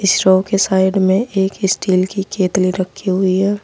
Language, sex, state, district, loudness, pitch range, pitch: Hindi, female, Uttar Pradesh, Saharanpur, -16 LUFS, 185-195 Hz, 190 Hz